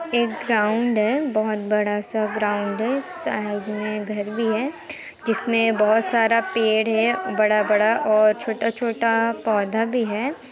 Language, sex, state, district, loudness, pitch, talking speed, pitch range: Hindi, female, Bihar, Muzaffarpur, -21 LUFS, 220 Hz, 150 wpm, 210-230 Hz